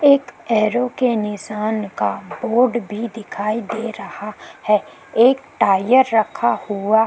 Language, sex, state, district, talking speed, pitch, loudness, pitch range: Hindi, female, Uttarakhand, Tehri Garhwal, 135 wpm, 220 Hz, -19 LUFS, 210-245 Hz